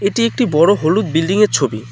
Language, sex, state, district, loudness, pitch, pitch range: Bengali, male, West Bengal, Cooch Behar, -14 LUFS, 200 Hz, 155-215 Hz